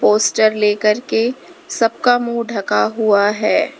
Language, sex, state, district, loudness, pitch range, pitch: Hindi, female, Uttar Pradesh, Lalitpur, -16 LUFS, 210-245 Hz, 225 Hz